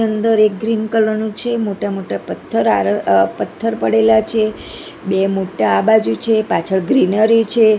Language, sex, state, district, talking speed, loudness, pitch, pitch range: Gujarati, female, Gujarat, Gandhinagar, 160 wpm, -16 LUFS, 215 Hz, 195-225 Hz